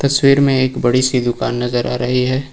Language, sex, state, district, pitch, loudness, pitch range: Hindi, male, Uttar Pradesh, Lucknow, 130 Hz, -15 LUFS, 125-135 Hz